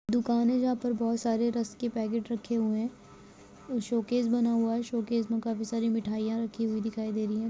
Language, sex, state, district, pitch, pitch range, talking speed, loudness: Hindi, female, Chhattisgarh, Sarguja, 230 Hz, 225-235 Hz, 225 wpm, -30 LUFS